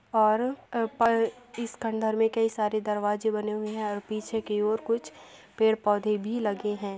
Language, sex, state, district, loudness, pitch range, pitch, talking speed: Hindi, female, Bihar, Begusarai, -28 LUFS, 210-225 Hz, 220 Hz, 180 wpm